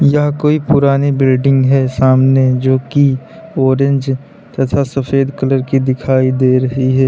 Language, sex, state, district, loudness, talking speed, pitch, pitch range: Hindi, male, Uttar Pradesh, Lalitpur, -13 LUFS, 145 wpm, 135 Hz, 130-140 Hz